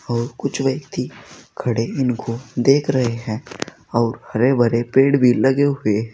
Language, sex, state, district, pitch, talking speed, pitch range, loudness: Hindi, male, Uttar Pradesh, Saharanpur, 125 Hz, 155 wpm, 115-135 Hz, -19 LUFS